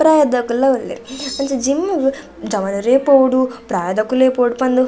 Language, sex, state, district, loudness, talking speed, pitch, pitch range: Tulu, female, Karnataka, Dakshina Kannada, -16 LUFS, 135 wpm, 260 Hz, 240-275 Hz